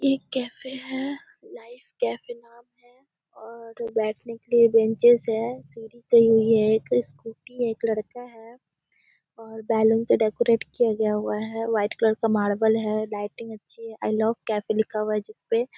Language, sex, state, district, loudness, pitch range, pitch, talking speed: Hindi, female, Bihar, Muzaffarpur, -23 LUFS, 220-240 Hz, 225 Hz, 185 wpm